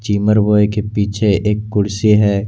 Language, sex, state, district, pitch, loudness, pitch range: Hindi, male, Jharkhand, Garhwa, 105 Hz, -15 LUFS, 100-105 Hz